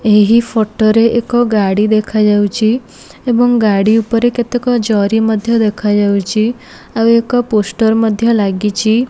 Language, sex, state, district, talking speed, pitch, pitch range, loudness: Odia, female, Odisha, Malkangiri, 120 wpm, 220 Hz, 210-235 Hz, -12 LUFS